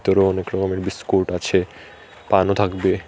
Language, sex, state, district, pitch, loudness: Bengali, male, Tripura, Unakoti, 95 Hz, -20 LUFS